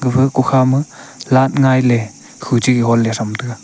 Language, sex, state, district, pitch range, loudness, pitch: Wancho, male, Arunachal Pradesh, Longding, 115-130 Hz, -15 LUFS, 125 Hz